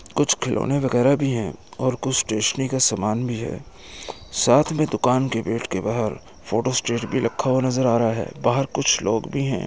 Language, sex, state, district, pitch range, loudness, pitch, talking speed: Hindi, male, Uttar Pradesh, Muzaffarnagar, 115-130 Hz, -22 LUFS, 125 Hz, 205 wpm